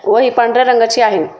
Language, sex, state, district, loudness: Marathi, female, Maharashtra, Chandrapur, -11 LUFS